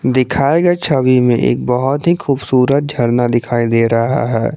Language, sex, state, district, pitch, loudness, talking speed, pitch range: Hindi, male, Jharkhand, Garhwa, 130 Hz, -14 LUFS, 170 wpm, 120-140 Hz